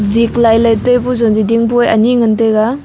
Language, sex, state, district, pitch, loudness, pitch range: Wancho, female, Arunachal Pradesh, Longding, 230 Hz, -11 LUFS, 225-240 Hz